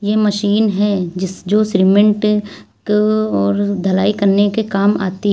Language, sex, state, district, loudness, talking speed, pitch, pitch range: Hindi, female, Uttar Pradesh, Lalitpur, -15 LUFS, 155 wpm, 205 Hz, 195-210 Hz